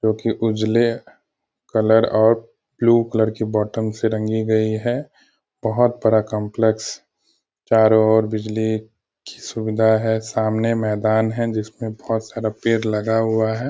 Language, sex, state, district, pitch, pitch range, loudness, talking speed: Hindi, male, Bihar, Sitamarhi, 110 Hz, 110-115 Hz, -19 LUFS, 140 wpm